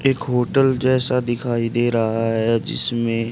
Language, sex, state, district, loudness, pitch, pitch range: Hindi, male, Haryana, Rohtak, -20 LUFS, 120 Hz, 115-130 Hz